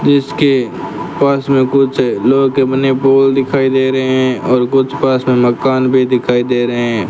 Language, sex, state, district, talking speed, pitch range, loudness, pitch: Hindi, male, Rajasthan, Bikaner, 185 wpm, 125-135 Hz, -13 LUFS, 130 Hz